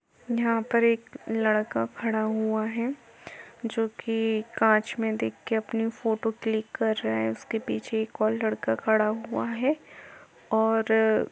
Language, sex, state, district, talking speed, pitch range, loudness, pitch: Hindi, female, Uttar Pradesh, Jalaun, 155 wpm, 220-230 Hz, -27 LUFS, 220 Hz